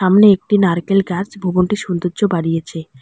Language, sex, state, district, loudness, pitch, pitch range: Bengali, female, West Bengal, Alipurduar, -16 LUFS, 180 Hz, 170-200 Hz